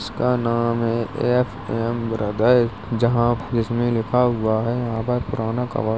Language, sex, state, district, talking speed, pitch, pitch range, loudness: Hindi, male, Uttar Pradesh, Jalaun, 150 wpm, 115 Hz, 115-120 Hz, -21 LUFS